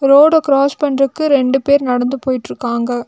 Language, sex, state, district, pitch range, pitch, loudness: Tamil, female, Tamil Nadu, Nilgiris, 250-280 Hz, 275 Hz, -14 LUFS